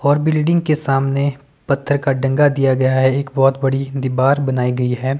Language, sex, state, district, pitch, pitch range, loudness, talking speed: Hindi, male, Himachal Pradesh, Shimla, 135 Hz, 130-140 Hz, -17 LUFS, 195 wpm